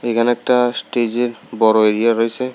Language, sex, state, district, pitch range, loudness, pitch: Bengali, male, Tripura, South Tripura, 115-120 Hz, -17 LUFS, 115 Hz